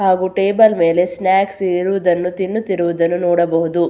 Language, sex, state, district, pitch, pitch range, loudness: Kannada, female, Karnataka, Belgaum, 180 Hz, 175-195 Hz, -16 LUFS